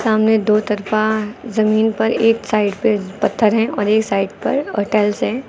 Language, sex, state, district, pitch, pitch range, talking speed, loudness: Hindi, female, Uttar Pradesh, Lucknow, 215 Hz, 210-225 Hz, 185 wpm, -17 LUFS